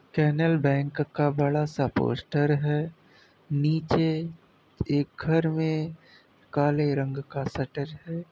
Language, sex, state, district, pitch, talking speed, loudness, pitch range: Hindi, male, Uttar Pradesh, Muzaffarnagar, 150 Hz, 115 wpm, -27 LUFS, 145-160 Hz